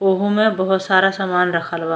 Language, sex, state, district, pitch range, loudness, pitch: Bhojpuri, female, Uttar Pradesh, Ghazipur, 180-195 Hz, -17 LUFS, 190 Hz